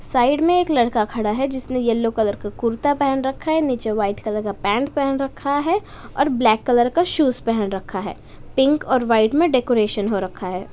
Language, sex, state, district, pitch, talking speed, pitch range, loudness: Hindi, female, Uttar Pradesh, Etah, 245 Hz, 215 wpm, 215-275 Hz, -20 LUFS